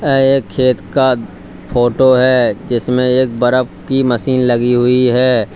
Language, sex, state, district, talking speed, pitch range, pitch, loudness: Hindi, male, Uttar Pradesh, Lalitpur, 150 wpm, 120-130 Hz, 125 Hz, -13 LUFS